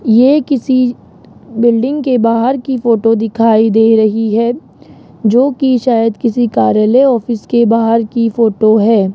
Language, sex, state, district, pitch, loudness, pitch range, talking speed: Hindi, male, Rajasthan, Jaipur, 230 Hz, -11 LUFS, 225-250 Hz, 145 wpm